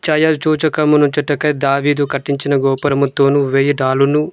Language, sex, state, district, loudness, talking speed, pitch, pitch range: Telugu, male, Andhra Pradesh, Manyam, -15 LUFS, 85 wpm, 145 Hz, 140-150 Hz